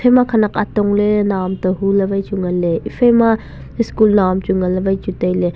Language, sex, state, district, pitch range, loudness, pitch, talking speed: Wancho, male, Arunachal Pradesh, Longding, 185-215 Hz, -16 LUFS, 195 Hz, 235 wpm